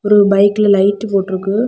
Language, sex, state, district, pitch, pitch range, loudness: Tamil, female, Tamil Nadu, Kanyakumari, 200 Hz, 195-210 Hz, -13 LUFS